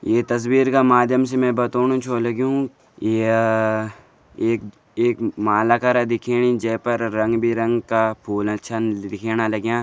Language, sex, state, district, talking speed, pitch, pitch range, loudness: Garhwali, male, Uttarakhand, Uttarkashi, 140 wpm, 115 Hz, 110-125 Hz, -20 LUFS